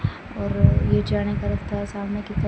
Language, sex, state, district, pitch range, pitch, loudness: Hindi, male, Haryana, Rohtak, 100-125 Hz, 100 Hz, -23 LUFS